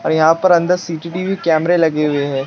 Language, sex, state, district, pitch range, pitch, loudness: Hindi, male, Maharashtra, Washim, 155-175 Hz, 165 Hz, -15 LUFS